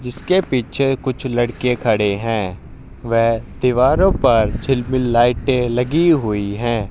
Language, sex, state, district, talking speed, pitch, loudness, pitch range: Hindi, male, Haryana, Jhajjar, 120 wpm, 120 Hz, -17 LUFS, 115-130 Hz